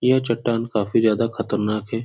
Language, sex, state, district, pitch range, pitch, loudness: Hindi, male, Bihar, Supaul, 110-115 Hz, 115 Hz, -21 LUFS